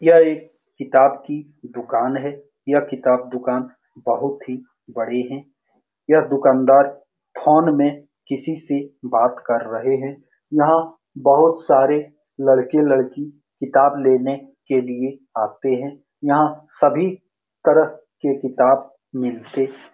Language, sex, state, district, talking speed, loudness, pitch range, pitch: Hindi, male, Bihar, Saran, 125 wpm, -19 LUFS, 130-150 Hz, 140 Hz